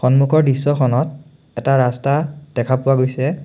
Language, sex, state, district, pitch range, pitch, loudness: Assamese, male, Assam, Sonitpur, 130-150 Hz, 135 Hz, -17 LUFS